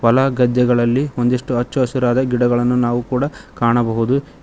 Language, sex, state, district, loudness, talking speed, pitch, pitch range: Kannada, male, Karnataka, Koppal, -17 LUFS, 110 wpm, 125 Hz, 120-130 Hz